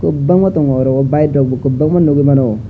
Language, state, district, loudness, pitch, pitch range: Kokborok, Tripura, West Tripura, -12 LUFS, 140 Hz, 130-150 Hz